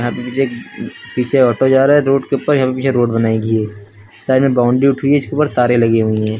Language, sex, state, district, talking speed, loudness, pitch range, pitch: Hindi, male, Uttar Pradesh, Lucknow, 290 wpm, -14 LUFS, 115-135 Hz, 125 Hz